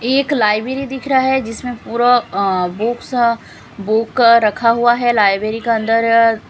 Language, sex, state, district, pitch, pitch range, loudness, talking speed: Hindi, female, Punjab, Kapurthala, 230 Hz, 220-245 Hz, -15 LUFS, 140 wpm